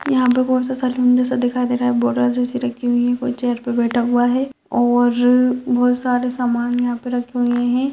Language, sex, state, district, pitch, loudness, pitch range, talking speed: Hindi, female, Rajasthan, Nagaur, 245 Hz, -18 LUFS, 245-250 Hz, 220 wpm